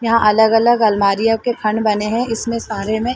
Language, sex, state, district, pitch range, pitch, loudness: Hindi, female, Chhattisgarh, Bilaspur, 215-230 Hz, 225 Hz, -16 LUFS